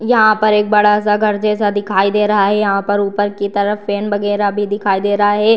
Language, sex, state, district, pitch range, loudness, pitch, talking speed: Hindi, female, Bihar, Purnia, 205-210 Hz, -14 LUFS, 205 Hz, 235 wpm